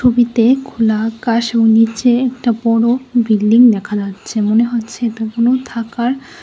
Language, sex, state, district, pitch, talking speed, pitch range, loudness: Bengali, female, Tripura, West Tripura, 235 Hz, 140 wpm, 225-245 Hz, -14 LUFS